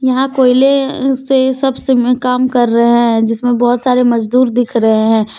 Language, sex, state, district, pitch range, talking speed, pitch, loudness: Hindi, female, Jharkhand, Deoghar, 235-260 Hz, 180 wpm, 250 Hz, -12 LUFS